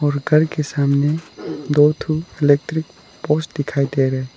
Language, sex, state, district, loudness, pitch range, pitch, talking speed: Hindi, male, Arunachal Pradesh, Lower Dibang Valley, -19 LUFS, 140-155 Hz, 150 Hz, 125 wpm